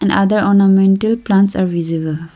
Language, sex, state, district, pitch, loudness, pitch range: English, female, Arunachal Pradesh, Lower Dibang Valley, 195 Hz, -14 LUFS, 170-200 Hz